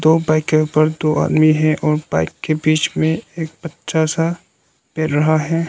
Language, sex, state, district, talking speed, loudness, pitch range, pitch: Hindi, male, Arunachal Pradesh, Lower Dibang Valley, 190 wpm, -17 LUFS, 155-160 Hz, 155 Hz